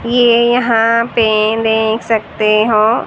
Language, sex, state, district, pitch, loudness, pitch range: Hindi, female, Haryana, Jhajjar, 225 Hz, -12 LUFS, 220-235 Hz